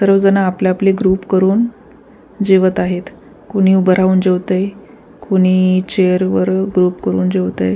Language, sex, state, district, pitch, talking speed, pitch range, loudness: Marathi, female, Maharashtra, Pune, 185 Hz, 125 wpm, 185-195 Hz, -14 LUFS